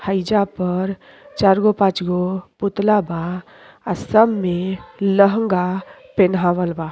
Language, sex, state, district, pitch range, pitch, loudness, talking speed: Bhojpuri, female, Uttar Pradesh, Deoria, 180-200 Hz, 190 Hz, -19 LUFS, 120 wpm